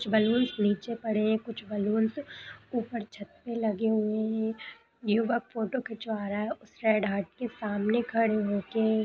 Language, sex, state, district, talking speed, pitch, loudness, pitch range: Hindi, female, Bihar, East Champaran, 165 wpm, 220 Hz, -30 LUFS, 210-230 Hz